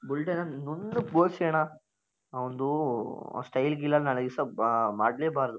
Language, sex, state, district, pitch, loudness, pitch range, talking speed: Kannada, male, Karnataka, Shimoga, 145 Hz, -29 LUFS, 125-155 Hz, 140 wpm